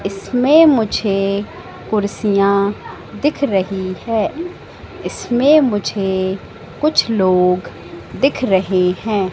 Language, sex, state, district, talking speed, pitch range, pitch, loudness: Hindi, female, Madhya Pradesh, Katni, 85 wpm, 190-250 Hz, 200 Hz, -16 LUFS